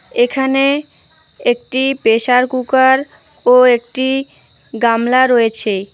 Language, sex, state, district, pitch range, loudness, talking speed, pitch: Bengali, female, West Bengal, Alipurduar, 235-265 Hz, -14 LUFS, 80 wpm, 250 Hz